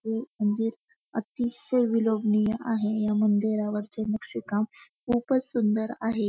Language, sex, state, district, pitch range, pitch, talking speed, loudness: Marathi, female, Maharashtra, Pune, 215-235 Hz, 225 Hz, 115 wpm, -27 LUFS